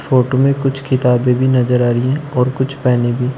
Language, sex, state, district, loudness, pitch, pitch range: Hindi, male, Uttar Pradesh, Shamli, -15 LUFS, 130 Hz, 125-135 Hz